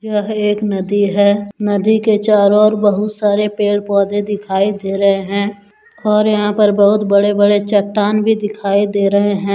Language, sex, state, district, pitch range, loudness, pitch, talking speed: Hindi, male, Jharkhand, Deoghar, 200-210 Hz, -14 LUFS, 205 Hz, 175 wpm